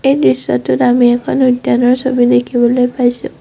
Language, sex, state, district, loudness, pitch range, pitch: Assamese, female, Assam, Sonitpur, -12 LUFS, 240-250 Hz, 245 Hz